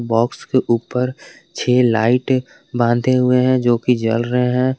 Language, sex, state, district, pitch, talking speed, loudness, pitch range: Hindi, male, Jharkhand, Garhwa, 125 Hz, 165 wpm, -17 LUFS, 120-130 Hz